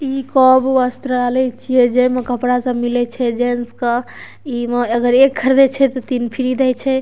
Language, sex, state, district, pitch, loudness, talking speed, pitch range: Maithili, female, Bihar, Darbhanga, 250 Hz, -16 LUFS, 195 wpm, 245-260 Hz